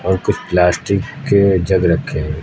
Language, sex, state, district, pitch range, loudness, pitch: Hindi, male, Uttar Pradesh, Lucknow, 90-100 Hz, -16 LUFS, 95 Hz